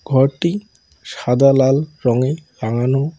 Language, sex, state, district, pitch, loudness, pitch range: Bengali, male, West Bengal, Cooch Behar, 135 Hz, -17 LUFS, 130-155 Hz